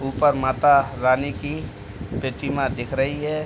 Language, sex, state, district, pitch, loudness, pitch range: Hindi, male, Uttar Pradesh, Deoria, 135 Hz, -22 LUFS, 125-140 Hz